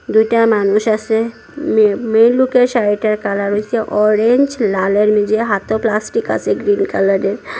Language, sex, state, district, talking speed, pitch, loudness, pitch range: Bengali, female, Assam, Hailakandi, 135 wpm, 220 Hz, -15 LUFS, 205-230 Hz